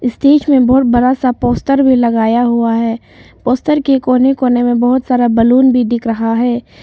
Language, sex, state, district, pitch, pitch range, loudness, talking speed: Hindi, female, Arunachal Pradesh, Papum Pare, 245 Hz, 235-260 Hz, -12 LUFS, 195 wpm